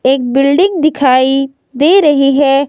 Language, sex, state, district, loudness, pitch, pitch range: Hindi, female, Himachal Pradesh, Shimla, -10 LUFS, 275 Hz, 270-300 Hz